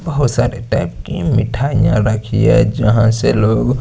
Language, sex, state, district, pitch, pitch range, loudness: Hindi, male, Chandigarh, Chandigarh, 120 Hz, 110-140 Hz, -15 LUFS